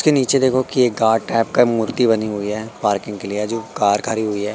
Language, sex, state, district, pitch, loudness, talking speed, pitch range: Hindi, male, Madhya Pradesh, Katni, 110 Hz, -18 LUFS, 265 wpm, 105-120 Hz